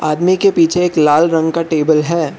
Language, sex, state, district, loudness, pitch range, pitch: Hindi, male, Arunachal Pradesh, Lower Dibang Valley, -13 LUFS, 155-170 Hz, 165 Hz